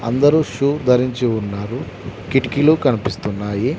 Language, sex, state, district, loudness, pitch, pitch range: Telugu, male, Telangana, Mahabubabad, -18 LUFS, 125 Hz, 105-140 Hz